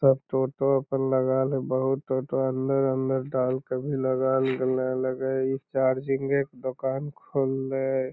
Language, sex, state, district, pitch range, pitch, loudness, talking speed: Magahi, male, Bihar, Lakhisarai, 130-135 Hz, 130 Hz, -26 LUFS, 150 wpm